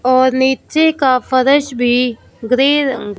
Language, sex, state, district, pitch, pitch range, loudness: Hindi, female, Punjab, Fazilka, 260 Hz, 250-275 Hz, -14 LUFS